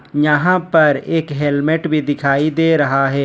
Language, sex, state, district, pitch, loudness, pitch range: Hindi, male, Jharkhand, Ranchi, 150 Hz, -15 LUFS, 140-160 Hz